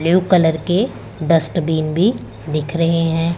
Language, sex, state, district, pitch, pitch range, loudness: Hindi, female, Punjab, Pathankot, 165 Hz, 160-175 Hz, -17 LUFS